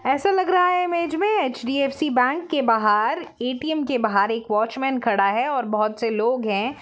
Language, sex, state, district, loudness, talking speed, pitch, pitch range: Hindi, female, Jharkhand, Jamtara, -21 LUFS, 200 wpm, 255 Hz, 225-310 Hz